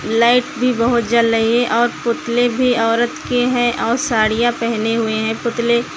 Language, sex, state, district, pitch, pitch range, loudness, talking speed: Hindi, female, Uttar Pradesh, Lucknow, 235 Hz, 230-240 Hz, -16 LUFS, 190 wpm